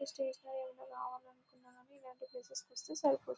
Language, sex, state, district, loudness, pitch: Telugu, female, Telangana, Nalgonda, -42 LUFS, 270 Hz